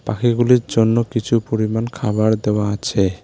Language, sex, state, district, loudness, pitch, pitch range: Bengali, male, West Bengal, Alipurduar, -18 LUFS, 110 Hz, 105-120 Hz